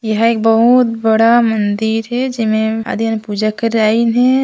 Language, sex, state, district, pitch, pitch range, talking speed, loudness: Chhattisgarhi, female, Chhattisgarh, Sarguja, 225 Hz, 220-235 Hz, 175 wpm, -14 LUFS